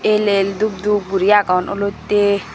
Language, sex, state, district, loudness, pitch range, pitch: Chakma, female, Tripura, Dhalai, -17 LUFS, 195-210 Hz, 200 Hz